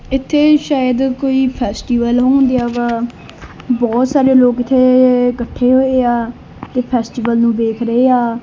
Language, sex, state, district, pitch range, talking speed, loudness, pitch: Punjabi, male, Punjab, Kapurthala, 240-260 Hz, 140 wpm, -14 LUFS, 250 Hz